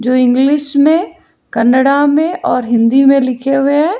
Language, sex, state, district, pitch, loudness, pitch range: Hindi, female, Karnataka, Bangalore, 275 Hz, -11 LUFS, 250-295 Hz